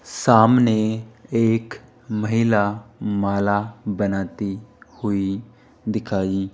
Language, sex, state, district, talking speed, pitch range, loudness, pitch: Hindi, male, Rajasthan, Jaipur, 75 wpm, 100-115 Hz, -21 LUFS, 110 Hz